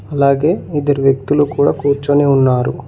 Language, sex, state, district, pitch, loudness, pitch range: Telugu, male, Telangana, Mahabubabad, 140 Hz, -14 LUFS, 135-145 Hz